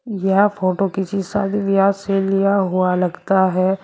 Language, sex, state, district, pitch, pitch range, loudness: Hindi, female, Uttar Pradesh, Shamli, 195 Hz, 190-200 Hz, -18 LUFS